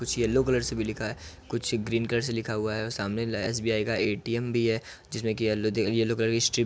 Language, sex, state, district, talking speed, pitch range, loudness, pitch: Hindi, male, Uttar Pradesh, Muzaffarnagar, 250 wpm, 110-115 Hz, -28 LUFS, 115 Hz